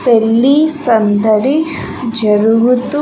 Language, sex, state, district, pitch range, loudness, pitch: Telugu, female, Andhra Pradesh, Sri Satya Sai, 220-275 Hz, -12 LUFS, 235 Hz